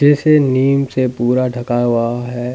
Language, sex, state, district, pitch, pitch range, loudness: Hindi, male, Delhi, New Delhi, 125 Hz, 120-140 Hz, -15 LUFS